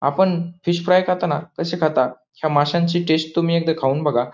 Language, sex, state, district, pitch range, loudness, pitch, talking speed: Marathi, male, Maharashtra, Pune, 145-175 Hz, -20 LUFS, 160 Hz, 195 wpm